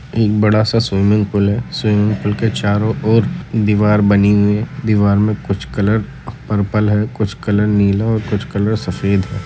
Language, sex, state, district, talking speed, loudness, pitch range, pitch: Hindi, male, Uttar Pradesh, Budaun, 185 wpm, -15 LUFS, 100-110 Hz, 105 Hz